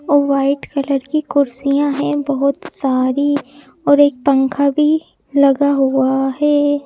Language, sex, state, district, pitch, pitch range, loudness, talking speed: Hindi, male, Madhya Pradesh, Bhopal, 280 Hz, 275-290 Hz, -16 LUFS, 130 wpm